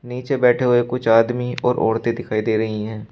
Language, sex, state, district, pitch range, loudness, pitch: Hindi, male, Uttar Pradesh, Shamli, 110-125 Hz, -19 LUFS, 120 Hz